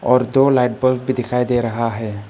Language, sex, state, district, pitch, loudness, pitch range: Hindi, male, Arunachal Pradesh, Papum Pare, 125 Hz, -18 LUFS, 115-130 Hz